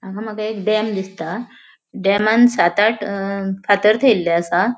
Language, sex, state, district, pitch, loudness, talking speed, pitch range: Konkani, female, Goa, North and South Goa, 205 Hz, -17 LUFS, 150 wpm, 195-220 Hz